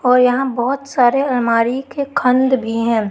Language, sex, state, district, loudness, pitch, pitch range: Hindi, female, Madhya Pradesh, Katni, -16 LUFS, 250 Hz, 235-265 Hz